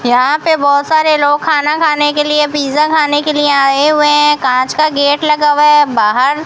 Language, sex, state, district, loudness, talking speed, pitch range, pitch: Hindi, female, Rajasthan, Bikaner, -11 LUFS, 215 wpm, 285-300 Hz, 295 Hz